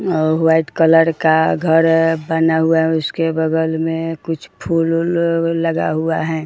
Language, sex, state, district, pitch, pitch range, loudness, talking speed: Hindi, female, Bihar, Jahanabad, 160 Hz, 160-165 Hz, -16 LUFS, 160 wpm